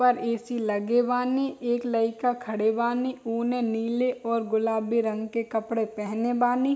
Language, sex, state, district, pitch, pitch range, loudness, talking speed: Bhojpuri, female, Bihar, East Champaran, 235 Hz, 225-245 Hz, -26 LUFS, 115 wpm